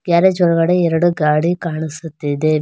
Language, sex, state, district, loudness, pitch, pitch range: Kannada, female, Karnataka, Bangalore, -16 LUFS, 165 Hz, 155-175 Hz